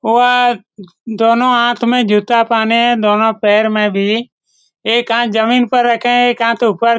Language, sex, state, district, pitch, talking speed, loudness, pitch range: Hindi, male, Bihar, Saran, 230 Hz, 170 wpm, -12 LUFS, 220-240 Hz